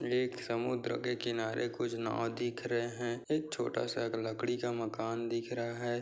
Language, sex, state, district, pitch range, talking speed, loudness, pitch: Hindi, male, Maharashtra, Sindhudurg, 115-120 Hz, 180 wpm, -36 LUFS, 120 Hz